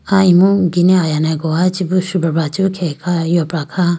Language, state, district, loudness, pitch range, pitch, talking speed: Idu Mishmi, Arunachal Pradesh, Lower Dibang Valley, -15 LUFS, 165-185 Hz, 175 Hz, 195 wpm